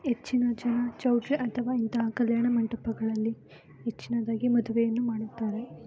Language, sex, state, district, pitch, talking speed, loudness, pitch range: Kannada, female, Karnataka, Bijapur, 235 Hz, 100 wpm, -29 LUFS, 230-245 Hz